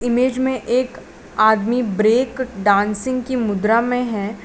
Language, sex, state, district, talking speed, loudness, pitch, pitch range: Hindi, female, Gujarat, Valsad, 135 wpm, -18 LUFS, 240 Hz, 210-250 Hz